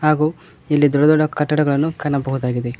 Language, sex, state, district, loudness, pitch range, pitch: Kannada, male, Karnataka, Koppal, -18 LUFS, 140-155 Hz, 150 Hz